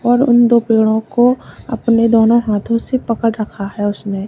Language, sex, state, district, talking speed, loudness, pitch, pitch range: Hindi, female, Uttar Pradesh, Lalitpur, 180 wpm, -14 LUFS, 230 Hz, 215-240 Hz